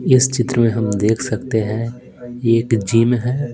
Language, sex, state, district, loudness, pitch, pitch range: Hindi, male, Bihar, Patna, -17 LUFS, 115 Hz, 115-125 Hz